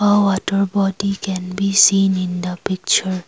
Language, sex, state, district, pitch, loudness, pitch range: English, female, Assam, Kamrup Metropolitan, 195 Hz, -17 LUFS, 185-195 Hz